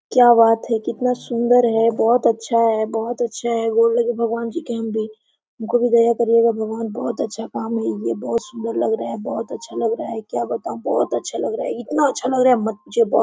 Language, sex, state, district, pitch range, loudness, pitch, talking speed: Hindi, female, Jharkhand, Sahebganj, 225-240 Hz, -19 LUFS, 230 Hz, 225 wpm